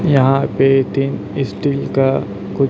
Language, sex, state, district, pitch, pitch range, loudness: Hindi, male, Chhattisgarh, Raipur, 135 Hz, 130-135 Hz, -16 LUFS